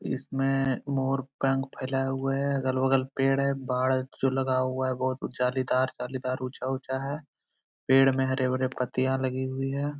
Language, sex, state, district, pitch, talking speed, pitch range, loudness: Hindi, male, Bihar, Araria, 130 Hz, 155 wpm, 130-135 Hz, -28 LUFS